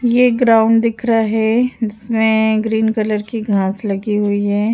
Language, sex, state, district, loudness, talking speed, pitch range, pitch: Hindi, female, Uttar Pradesh, Jyotiba Phule Nagar, -16 LUFS, 165 wpm, 210-230 Hz, 220 Hz